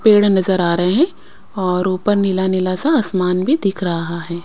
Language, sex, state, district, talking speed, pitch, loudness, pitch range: Hindi, female, Haryana, Rohtak, 200 wpm, 185 Hz, -17 LUFS, 180-200 Hz